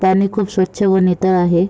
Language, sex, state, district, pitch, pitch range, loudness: Marathi, female, Maharashtra, Sindhudurg, 190 Hz, 185-195 Hz, -15 LUFS